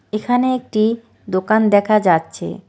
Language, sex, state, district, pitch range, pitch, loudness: Bengali, female, West Bengal, Cooch Behar, 205-230 Hz, 215 Hz, -17 LUFS